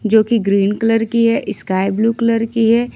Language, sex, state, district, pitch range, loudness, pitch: Hindi, female, Jharkhand, Ranchi, 205-230 Hz, -16 LUFS, 225 Hz